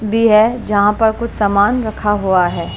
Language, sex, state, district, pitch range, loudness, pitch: Hindi, female, Punjab, Kapurthala, 205-225 Hz, -14 LUFS, 215 Hz